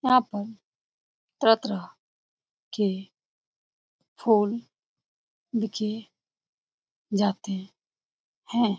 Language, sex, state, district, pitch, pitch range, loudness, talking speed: Hindi, female, Bihar, Lakhisarai, 215 Hz, 200-225 Hz, -27 LUFS, 60 wpm